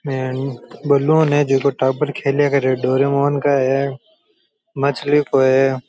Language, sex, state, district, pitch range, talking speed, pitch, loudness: Rajasthani, male, Rajasthan, Churu, 135-145 Hz, 130 wpm, 140 Hz, -17 LUFS